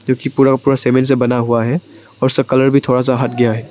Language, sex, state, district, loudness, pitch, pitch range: Hindi, male, Arunachal Pradesh, Papum Pare, -14 LUFS, 130 Hz, 125-135 Hz